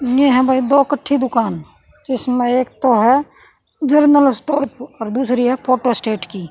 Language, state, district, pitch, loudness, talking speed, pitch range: Haryanvi, Haryana, Rohtak, 255 Hz, -16 LUFS, 155 wpm, 245-280 Hz